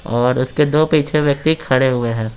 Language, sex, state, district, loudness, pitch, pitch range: Hindi, male, Bihar, Patna, -16 LUFS, 130 Hz, 125-150 Hz